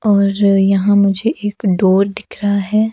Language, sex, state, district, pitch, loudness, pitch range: Hindi, female, Himachal Pradesh, Shimla, 200 Hz, -14 LUFS, 195-205 Hz